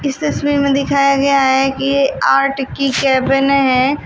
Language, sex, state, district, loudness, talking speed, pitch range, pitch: Hindi, female, Uttar Pradesh, Shamli, -14 LUFS, 165 wpm, 270-280 Hz, 275 Hz